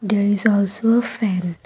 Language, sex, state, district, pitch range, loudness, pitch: English, female, Assam, Kamrup Metropolitan, 195-220 Hz, -19 LUFS, 205 Hz